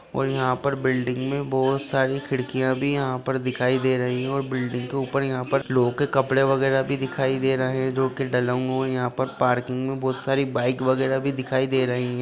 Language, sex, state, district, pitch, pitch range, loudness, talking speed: Hindi, male, Bihar, Jahanabad, 130 Hz, 130-135 Hz, -24 LUFS, 240 wpm